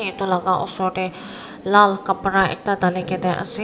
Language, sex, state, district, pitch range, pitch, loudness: Nagamese, female, Nagaland, Kohima, 185-200 Hz, 190 Hz, -20 LUFS